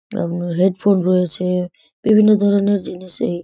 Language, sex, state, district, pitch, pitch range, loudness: Bengali, female, West Bengal, Purulia, 185 Hz, 175-200 Hz, -17 LUFS